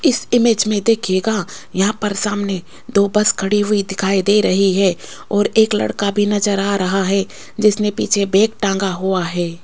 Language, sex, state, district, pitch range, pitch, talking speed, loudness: Hindi, female, Rajasthan, Jaipur, 195-210 Hz, 200 Hz, 180 wpm, -17 LUFS